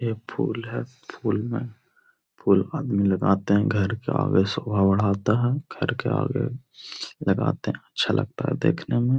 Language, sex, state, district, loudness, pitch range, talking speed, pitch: Hindi, male, Bihar, Gaya, -24 LUFS, 100-130 Hz, 165 wpm, 120 Hz